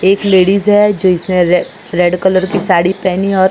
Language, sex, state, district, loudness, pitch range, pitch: Hindi, female, Maharashtra, Mumbai Suburban, -12 LUFS, 180-195 Hz, 190 Hz